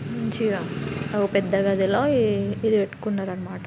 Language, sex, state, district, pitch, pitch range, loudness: Telugu, female, Telangana, Karimnagar, 200 Hz, 195-215 Hz, -24 LUFS